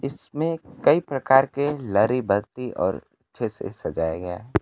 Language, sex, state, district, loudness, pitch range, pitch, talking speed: Hindi, male, Bihar, Kaimur, -24 LUFS, 105-140 Hz, 125 Hz, 145 wpm